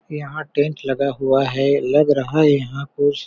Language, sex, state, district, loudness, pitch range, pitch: Hindi, male, Chhattisgarh, Balrampur, -18 LUFS, 135-150 Hz, 140 Hz